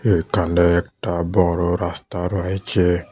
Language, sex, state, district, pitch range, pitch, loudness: Bengali, male, Tripura, West Tripura, 85-95 Hz, 90 Hz, -20 LUFS